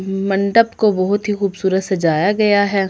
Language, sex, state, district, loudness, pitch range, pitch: Hindi, female, Delhi, New Delhi, -16 LUFS, 190-205 Hz, 200 Hz